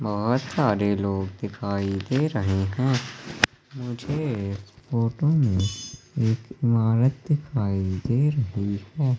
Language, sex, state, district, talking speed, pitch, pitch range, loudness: Hindi, male, Madhya Pradesh, Katni, 105 wpm, 115 Hz, 100-130 Hz, -25 LUFS